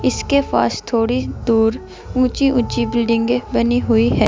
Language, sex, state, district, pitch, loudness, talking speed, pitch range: Hindi, female, Uttar Pradesh, Saharanpur, 230 Hz, -17 LUFS, 140 wpm, 220-250 Hz